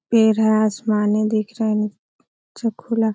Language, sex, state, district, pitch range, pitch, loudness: Hindi, female, Uttar Pradesh, Hamirpur, 215-225 Hz, 220 Hz, -20 LUFS